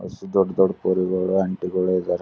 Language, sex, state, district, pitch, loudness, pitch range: Kannada, male, Karnataka, Gulbarga, 95 Hz, -22 LUFS, 90-95 Hz